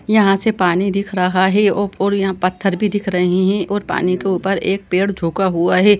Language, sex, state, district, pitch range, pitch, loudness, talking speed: Hindi, female, Bihar, Lakhisarai, 185-200 Hz, 195 Hz, -16 LUFS, 220 wpm